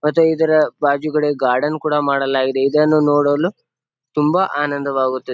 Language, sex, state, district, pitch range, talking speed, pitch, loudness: Kannada, male, Karnataka, Bijapur, 135-155 Hz, 135 wpm, 145 Hz, -17 LUFS